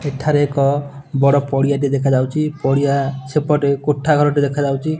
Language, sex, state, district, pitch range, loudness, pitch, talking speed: Odia, male, Odisha, Nuapada, 140-145 Hz, -17 LUFS, 140 Hz, 180 wpm